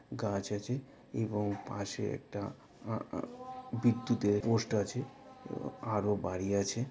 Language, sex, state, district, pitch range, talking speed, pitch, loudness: Bengali, male, West Bengal, North 24 Parganas, 100-120 Hz, 115 wpm, 105 Hz, -35 LUFS